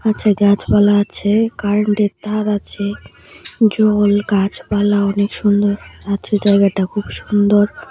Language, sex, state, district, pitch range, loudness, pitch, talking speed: Bengali, female, Tripura, West Tripura, 205-210 Hz, -16 LUFS, 205 Hz, 105 wpm